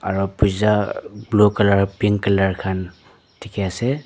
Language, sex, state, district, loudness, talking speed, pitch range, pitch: Nagamese, male, Nagaland, Dimapur, -19 LUFS, 120 wpm, 95-105 Hz, 100 Hz